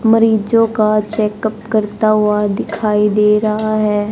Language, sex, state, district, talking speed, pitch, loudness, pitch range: Hindi, male, Haryana, Jhajjar, 130 wpm, 215 Hz, -15 LUFS, 210-220 Hz